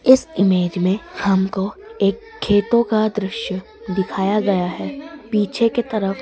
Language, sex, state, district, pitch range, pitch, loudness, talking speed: Hindi, female, Rajasthan, Jaipur, 190-225 Hz, 205 Hz, -20 LUFS, 135 wpm